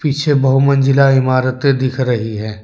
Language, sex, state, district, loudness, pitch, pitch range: Hindi, male, Jharkhand, Deoghar, -14 LUFS, 135 Hz, 130-140 Hz